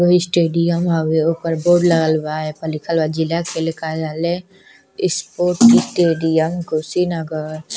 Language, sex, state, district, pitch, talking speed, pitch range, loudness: Bhojpuri, female, Uttar Pradesh, Deoria, 165 Hz, 125 wpm, 160-175 Hz, -17 LUFS